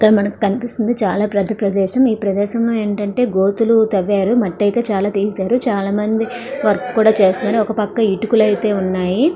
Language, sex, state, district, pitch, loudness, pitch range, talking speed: Telugu, female, Andhra Pradesh, Srikakulam, 210 Hz, -16 LUFS, 200-225 Hz, 145 wpm